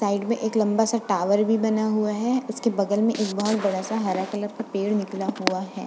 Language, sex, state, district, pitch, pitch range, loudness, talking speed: Hindi, female, Uttar Pradesh, Budaun, 210 Hz, 200-220 Hz, -24 LUFS, 245 wpm